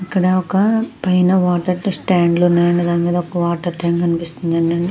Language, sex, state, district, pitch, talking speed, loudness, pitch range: Telugu, female, Andhra Pradesh, Krishna, 175 Hz, 135 wpm, -16 LUFS, 170-185 Hz